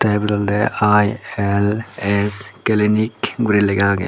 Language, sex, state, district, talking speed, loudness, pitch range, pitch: Chakma, male, Tripura, Dhalai, 120 wpm, -18 LUFS, 100-105 Hz, 105 Hz